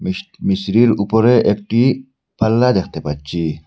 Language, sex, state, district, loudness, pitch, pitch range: Bengali, male, Assam, Hailakandi, -16 LUFS, 110 Hz, 95-125 Hz